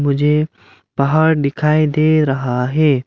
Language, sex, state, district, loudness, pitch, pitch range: Hindi, male, Arunachal Pradesh, Lower Dibang Valley, -15 LUFS, 150 Hz, 140-155 Hz